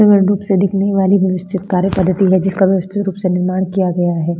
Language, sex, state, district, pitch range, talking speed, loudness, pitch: Hindi, female, Bihar, Vaishali, 185-195 Hz, 230 wpm, -15 LUFS, 190 Hz